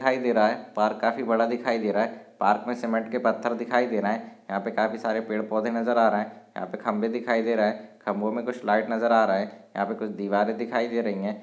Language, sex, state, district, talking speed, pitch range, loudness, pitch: Hindi, male, Maharashtra, Sindhudurg, 280 wpm, 105-120 Hz, -26 LUFS, 115 Hz